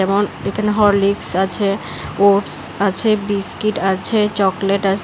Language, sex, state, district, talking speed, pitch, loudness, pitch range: Bengali, female, Tripura, West Tripura, 120 wpm, 200 Hz, -17 LUFS, 195-210 Hz